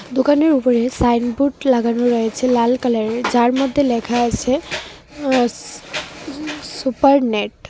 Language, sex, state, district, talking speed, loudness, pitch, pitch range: Bengali, female, Tripura, West Tripura, 115 wpm, -17 LUFS, 250 Hz, 235-275 Hz